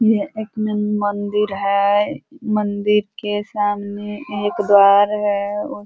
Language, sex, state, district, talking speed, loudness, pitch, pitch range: Hindi, female, Uttar Pradesh, Ghazipur, 135 wpm, -18 LUFS, 205 Hz, 205-210 Hz